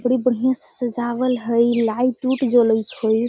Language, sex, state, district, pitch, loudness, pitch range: Magahi, female, Bihar, Gaya, 240 Hz, -20 LUFS, 235-255 Hz